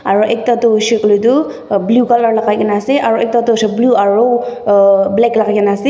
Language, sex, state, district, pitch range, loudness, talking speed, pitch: Nagamese, female, Nagaland, Dimapur, 210-240 Hz, -12 LUFS, 205 wpm, 225 Hz